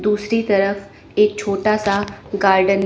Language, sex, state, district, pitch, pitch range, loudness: Hindi, female, Chandigarh, Chandigarh, 200 Hz, 195-210 Hz, -18 LUFS